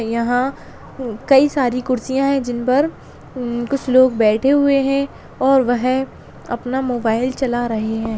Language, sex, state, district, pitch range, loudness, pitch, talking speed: Hindi, female, Bihar, Kishanganj, 240-270 Hz, -18 LUFS, 255 Hz, 140 wpm